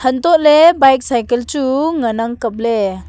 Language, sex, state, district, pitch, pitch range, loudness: Wancho, female, Arunachal Pradesh, Longding, 255 Hz, 230-295 Hz, -13 LUFS